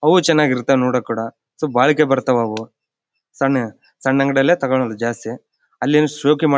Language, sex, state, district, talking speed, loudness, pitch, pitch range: Kannada, male, Karnataka, Bellary, 165 wpm, -17 LUFS, 135 Hz, 120-150 Hz